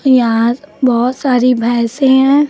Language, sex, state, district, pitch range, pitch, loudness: Hindi, female, Uttar Pradesh, Lucknow, 240-270 Hz, 255 Hz, -12 LUFS